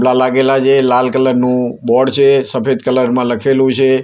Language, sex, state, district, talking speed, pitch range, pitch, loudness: Gujarati, male, Gujarat, Gandhinagar, 190 wpm, 125-135 Hz, 130 Hz, -12 LUFS